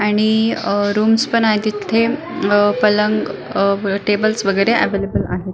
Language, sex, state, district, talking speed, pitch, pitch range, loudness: Marathi, female, Maharashtra, Pune, 130 wpm, 210 Hz, 200-220 Hz, -16 LUFS